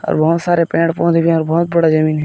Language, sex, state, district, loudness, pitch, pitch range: Hindi, male, Chhattisgarh, Bilaspur, -14 LUFS, 165 Hz, 160-170 Hz